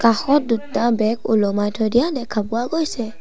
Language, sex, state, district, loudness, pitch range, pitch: Assamese, female, Assam, Sonitpur, -20 LUFS, 215-245 Hz, 230 Hz